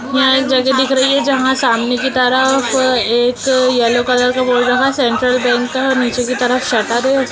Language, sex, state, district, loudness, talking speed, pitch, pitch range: Hindi, female, Bihar, Muzaffarpur, -13 LUFS, 195 wpm, 255 Hz, 245-265 Hz